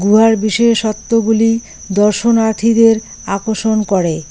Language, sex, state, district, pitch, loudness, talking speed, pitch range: Bengali, female, West Bengal, Cooch Behar, 220 Hz, -13 LUFS, 70 wpm, 210-225 Hz